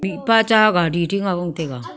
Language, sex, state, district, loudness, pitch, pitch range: Wancho, female, Arunachal Pradesh, Longding, -18 LUFS, 185 Hz, 170-215 Hz